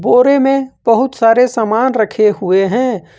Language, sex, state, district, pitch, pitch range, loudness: Hindi, male, Jharkhand, Ranchi, 230 Hz, 215-255 Hz, -12 LUFS